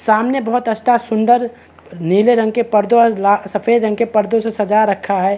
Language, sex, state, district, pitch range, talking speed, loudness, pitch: Hindi, male, Chhattisgarh, Bastar, 205-235 Hz, 200 wpm, -15 LUFS, 220 Hz